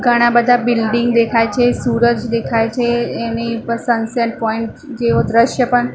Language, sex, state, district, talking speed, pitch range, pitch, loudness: Gujarati, female, Maharashtra, Mumbai Suburban, 160 wpm, 230-240 Hz, 235 Hz, -15 LUFS